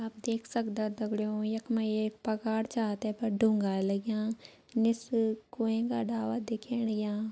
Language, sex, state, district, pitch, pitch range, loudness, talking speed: Garhwali, female, Uttarakhand, Uttarkashi, 220 Hz, 215-230 Hz, -32 LUFS, 150 wpm